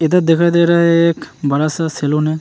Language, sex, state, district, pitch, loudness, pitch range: Hindi, male, Uttarakhand, Tehri Garhwal, 165 Hz, -14 LUFS, 155-170 Hz